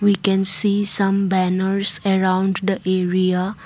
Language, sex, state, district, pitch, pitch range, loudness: English, female, Assam, Kamrup Metropolitan, 190 Hz, 185-195 Hz, -17 LUFS